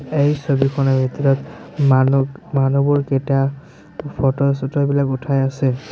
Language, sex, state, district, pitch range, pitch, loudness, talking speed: Assamese, male, Assam, Sonitpur, 135-140 Hz, 135 Hz, -18 LUFS, 110 wpm